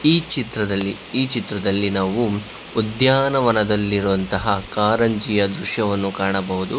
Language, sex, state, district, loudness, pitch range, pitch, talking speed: Kannada, male, Karnataka, Bangalore, -18 LUFS, 100-115 Hz, 105 Hz, 80 wpm